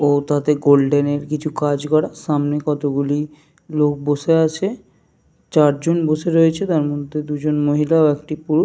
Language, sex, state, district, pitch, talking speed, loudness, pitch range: Bengali, male, Jharkhand, Jamtara, 150 Hz, 155 wpm, -18 LUFS, 145-155 Hz